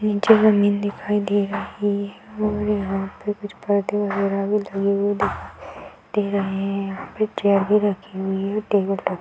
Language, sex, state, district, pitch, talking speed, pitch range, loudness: Hindi, female, Bihar, Darbhanga, 205 Hz, 195 wpm, 195-210 Hz, -22 LUFS